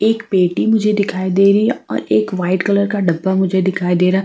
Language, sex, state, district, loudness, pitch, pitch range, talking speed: Hindi, female, Delhi, New Delhi, -16 LUFS, 190 Hz, 180-200 Hz, 255 wpm